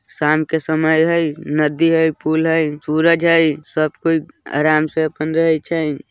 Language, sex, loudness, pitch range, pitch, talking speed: Bajjika, male, -17 LUFS, 155-165 Hz, 160 Hz, 175 wpm